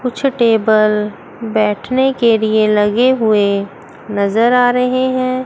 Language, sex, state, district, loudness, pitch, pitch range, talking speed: Hindi, female, Chandigarh, Chandigarh, -14 LUFS, 225 Hz, 210-255 Hz, 120 wpm